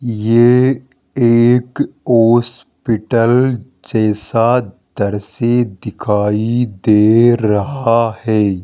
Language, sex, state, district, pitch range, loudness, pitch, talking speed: Hindi, male, Rajasthan, Jaipur, 105-120 Hz, -14 LUFS, 115 Hz, 65 wpm